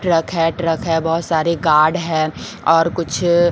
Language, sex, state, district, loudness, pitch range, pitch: Hindi, female, Bihar, Patna, -17 LUFS, 160-170 Hz, 165 Hz